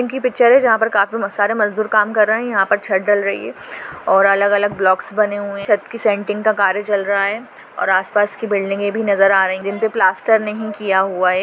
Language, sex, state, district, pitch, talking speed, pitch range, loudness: Hindi, female, Goa, North and South Goa, 205 Hz, 230 wpm, 195-215 Hz, -16 LUFS